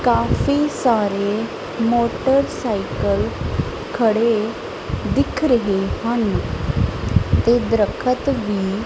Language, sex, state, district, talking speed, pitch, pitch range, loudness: Punjabi, female, Punjab, Kapurthala, 75 wpm, 230 Hz, 210-250 Hz, -20 LUFS